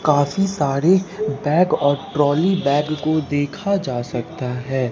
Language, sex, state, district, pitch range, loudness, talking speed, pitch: Hindi, male, Bihar, Katihar, 140-180 Hz, -20 LUFS, 120 wpm, 145 Hz